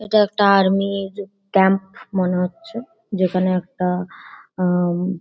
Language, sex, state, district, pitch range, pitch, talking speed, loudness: Bengali, female, West Bengal, Paschim Medinipur, 180-200 Hz, 190 Hz, 125 wpm, -19 LUFS